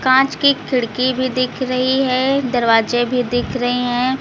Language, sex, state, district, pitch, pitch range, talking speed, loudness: Hindi, female, Uttar Pradesh, Lucknow, 255 Hz, 245-260 Hz, 170 wpm, -17 LUFS